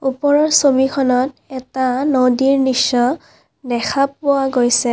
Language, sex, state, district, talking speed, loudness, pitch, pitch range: Assamese, female, Assam, Kamrup Metropolitan, 95 wpm, -16 LUFS, 265 Hz, 255-275 Hz